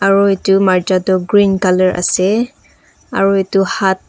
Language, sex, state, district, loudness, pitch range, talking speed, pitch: Nagamese, female, Nagaland, Kohima, -13 LUFS, 185-195 Hz, 130 wpm, 195 Hz